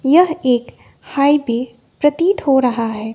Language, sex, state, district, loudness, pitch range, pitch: Hindi, female, Bihar, West Champaran, -16 LUFS, 240-295 Hz, 270 Hz